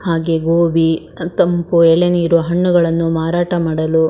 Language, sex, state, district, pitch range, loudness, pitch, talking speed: Kannada, female, Karnataka, Shimoga, 165-175 Hz, -15 LUFS, 170 Hz, 130 wpm